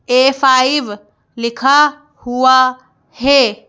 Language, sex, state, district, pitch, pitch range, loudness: Hindi, female, Madhya Pradesh, Bhopal, 255 Hz, 235-275 Hz, -13 LUFS